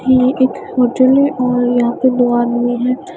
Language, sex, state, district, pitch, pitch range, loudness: Hindi, female, Himachal Pradesh, Shimla, 250 Hz, 245-260 Hz, -14 LUFS